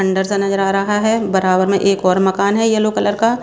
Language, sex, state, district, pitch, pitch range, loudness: Hindi, female, Bihar, West Champaran, 195 Hz, 190-215 Hz, -15 LUFS